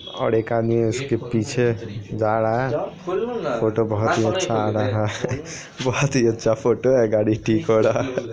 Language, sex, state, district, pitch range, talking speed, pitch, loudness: Hindi, male, Bihar, Purnia, 110-130 Hz, 160 wpm, 115 Hz, -21 LUFS